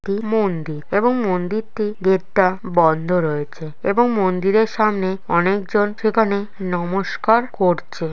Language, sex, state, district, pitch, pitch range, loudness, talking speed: Bengali, female, West Bengal, Purulia, 195 Hz, 175-215 Hz, -19 LUFS, 110 wpm